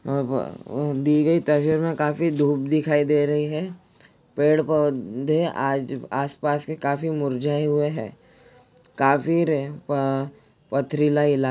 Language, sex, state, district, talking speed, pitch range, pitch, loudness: Hindi, male, Jharkhand, Jamtara, 115 wpm, 140-155 Hz, 145 Hz, -23 LUFS